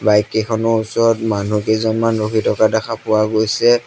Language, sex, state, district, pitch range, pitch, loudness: Assamese, male, Assam, Sonitpur, 110-115 Hz, 110 Hz, -16 LUFS